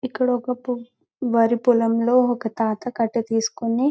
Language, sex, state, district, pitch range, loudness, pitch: Telugu, female, Telangana, Karimnagar, 230-250 Hz, -21 LUFS, 240 Hz